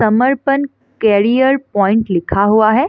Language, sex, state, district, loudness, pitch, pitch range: Hindi, female, Bihar, Madhepura, -14 LUFS, 220 Hz, 205-270 Hz